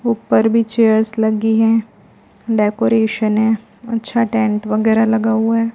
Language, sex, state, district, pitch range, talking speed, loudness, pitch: Hindi, female, Chhattisgarh, Raipur, 220-230 Hz, 135 wpm, -16 LUFS, 225 Hz